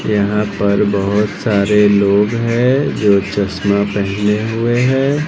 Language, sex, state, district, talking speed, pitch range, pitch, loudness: Hindi, male, Bihar, West Champaran, 125 wpm, 100-115 Hz, 105 Hz, -14 LUFS